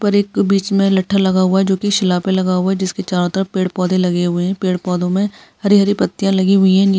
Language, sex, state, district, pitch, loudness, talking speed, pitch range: Hindi, female, Maharashtra, Nagpur, 190 Hz, -15 LUFS, 285 wpm, 185-195 Hz